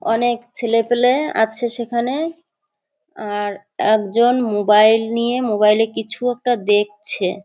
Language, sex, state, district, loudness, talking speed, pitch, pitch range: Bengali, female, West Bengal, Kolkata, -17 LUFS, 105 wpm, 235 Hz, 210-245 Hz